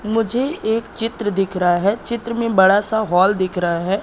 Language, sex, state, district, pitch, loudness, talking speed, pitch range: Hindi, male, Madhya Pradesh, Katni, 210 Hz, -18 LUFS, 210 wpm, 190-225 Hz